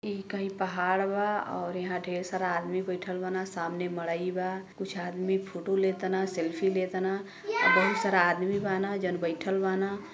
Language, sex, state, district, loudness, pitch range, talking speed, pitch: Bhojpuri, female, Uttar Pradesh, Gorakhpur, -30 LUFS, 180-195 Hz, 165 wpm, 185 Hz